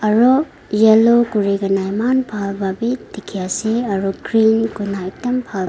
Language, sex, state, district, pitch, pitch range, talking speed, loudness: Nagamese, female, Nagaland, Dimapur, 215 Hz, 195-235 Hz, 150 wpm, -17 LUFS